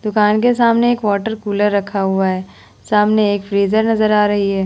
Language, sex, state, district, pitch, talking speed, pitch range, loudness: Hindi, female, Bihar, Vaishali, 210 Hz, 220 wpm, 200-220 Hz, -15 LUFS